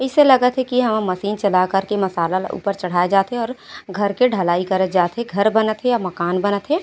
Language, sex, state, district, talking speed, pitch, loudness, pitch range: Chhattisgarhi, female, Chhattisgarh, Raigarh, 255 wpm, 200 Hz, -18 LUFS, 185-240 Hz